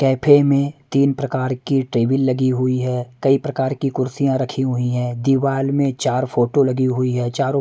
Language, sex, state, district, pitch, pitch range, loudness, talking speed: Hindi, male, Punjab, Pathankot, 130 Hz, 125-140 Hz, -19 LUFS, 190 wpm